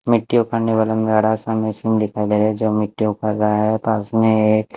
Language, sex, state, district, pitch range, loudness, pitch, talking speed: Hindi, male, Chandigarh, Chandigarh, 105-110 Hz, -18 LUFS, 110 Hz, 240 wpm